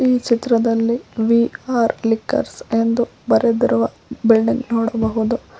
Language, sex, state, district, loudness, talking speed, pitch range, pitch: Kannada, female, Karnataka, Koppal, -18 LUFS, 95 wpm, 225-240 Hz, 230 Hz